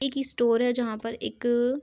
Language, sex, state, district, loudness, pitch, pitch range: Hindi, female, Uttar Pradesh, Etah, -26 LUFS, 240 Hz, 230-260 Hz